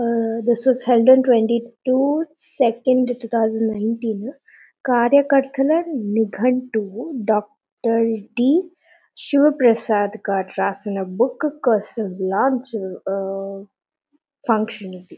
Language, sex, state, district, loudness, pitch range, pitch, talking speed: Telugu, female, Telangana, Nalgonda, -19 LUFS, 215-265 Hz, 235 Hz, 95 wpm